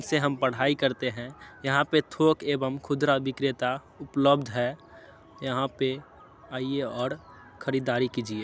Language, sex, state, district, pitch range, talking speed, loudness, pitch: Hindi, male, Bihar, Muzaffarpur, 130-140 Hz, 135 wpm, -27 LUFS, 135 Hz